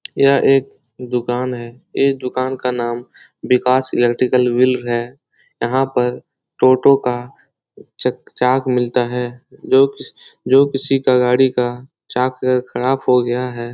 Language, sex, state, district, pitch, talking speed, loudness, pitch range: Hindi, male, Bihar, Jahanabad, 125 Hz, 145 wpm, -17 LUFS, 125-130 Hz